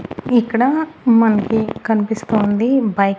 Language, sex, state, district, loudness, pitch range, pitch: Telugu, female, Andhra Pradesh, Annamaya, -16 LUFS, 215-240 Hz, 225 Hz